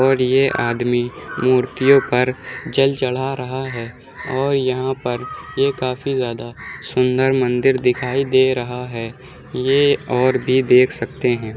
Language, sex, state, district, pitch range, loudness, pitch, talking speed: Hindi, male, Uttar Pradesh, Muzaffarnagar, 125-135 Hz, -18 LUFS, 130 Hz, 140 wpm